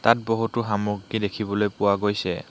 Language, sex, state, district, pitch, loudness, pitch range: Assamese, male, Assam, Hailakandi, 105 Hz, -24 LUFS, 100-115 Hz